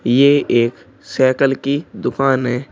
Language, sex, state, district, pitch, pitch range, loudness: Hindi, male, Uttar Pradesh, Shamli, 135 Hz, 125-140 Hz, -16 LUFS